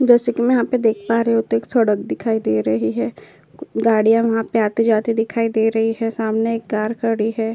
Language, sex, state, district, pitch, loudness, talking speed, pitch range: Hindi, female, Uttar Pradesh, Hamirpur, 225 Hz, -18 LUFS, 225 wpm, 220-230 Hz